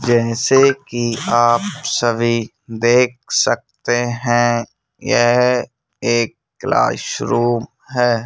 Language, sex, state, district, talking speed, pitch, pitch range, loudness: Hindi, male, Madhya Pradesh, Bhopal, 80 wpm, 120 Hz, 115-125 Hz, -17 LUFS